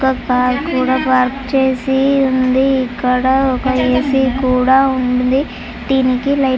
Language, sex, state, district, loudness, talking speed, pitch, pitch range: Telugu, female, Andhra Pradesh, Chittoor, -14 LUFS, 130 wpm, 260 Hz, 250-265 Hz